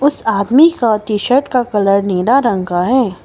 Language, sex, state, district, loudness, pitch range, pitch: Hindi, female, Arunachal Pradesh, Longding, -13 LUFS, 200-260 Hz, 225 Hz